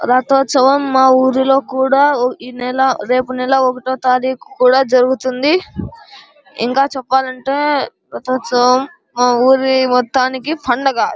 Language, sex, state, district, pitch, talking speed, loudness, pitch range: Telugu, male, Andhra Pradesh, Anantapur, 260 Hz, 120 wpm, -14 LUFS, 255-270 Hz